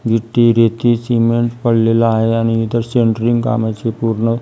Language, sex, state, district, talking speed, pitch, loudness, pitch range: Marathi, female, Maharashtra, Gondia, 135 wpm, 115 Hz, -15 LUFS, 115-120 Hz